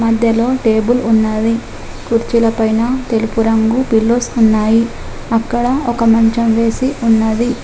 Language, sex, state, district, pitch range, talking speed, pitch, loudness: Telugu, female, Telangana, Adilabad, 225-240 Hz, 100 wpm, 230 Hz, -14 LUFS